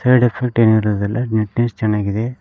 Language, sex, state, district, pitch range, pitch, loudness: Kannada, male, Karnataka, Koppal, 105-120 Hz, 115 Hz, -17 LUFS